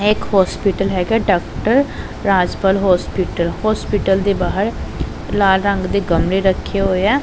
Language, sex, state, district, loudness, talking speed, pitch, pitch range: Punjabi, male, Punjab, Pathankot, -17 LUFS, 140 wpm, 195 Hz, 185-205 Hz